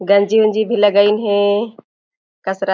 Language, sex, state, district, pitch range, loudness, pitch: Chhattisgarhi, female, Chhattisgarh, Jashpur, 200-215 Hz, -15 LUFS, 205 Hz